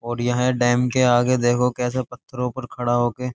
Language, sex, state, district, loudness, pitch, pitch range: Hindi, male, Uttar Pradesh, Jyotiba Phule Nagar, -21 LUFS, 125 Hz, 120-125 Hz